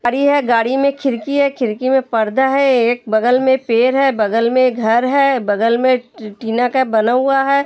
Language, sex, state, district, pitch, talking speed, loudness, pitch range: Hindi, female, Uttar Pradesh, Hamirpur, 255 Hz, 205 wpm, -15 LUFS, 230-270 Hz